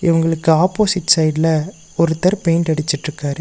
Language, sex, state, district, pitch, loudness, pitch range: Tamil, male, Tamil Nadu, Nilgiris, 165 Hz, -16 LUFS, 155-180 Hz